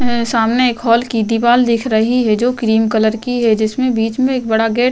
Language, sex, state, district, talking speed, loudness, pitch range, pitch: Hindi, female, Uttar Pradesh, Jyotiba Phule Nagar, 245 wpm, -14 LUFS, 225-250 Hz, 235 Hz